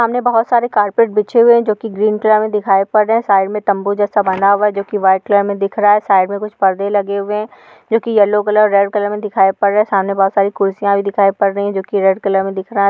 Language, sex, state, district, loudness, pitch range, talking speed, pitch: Hindi, female, Uttar Pradesh, Ghazipur, -14 LUFS, 200-215 Hz, 305 wpm, 205 Hz